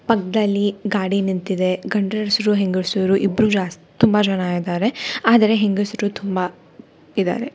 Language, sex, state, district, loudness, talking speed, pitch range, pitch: Kannada, female, Karnataka, Bangalore, -19 LUFS, 105 wpm, 185-215 Hz, 200 Hz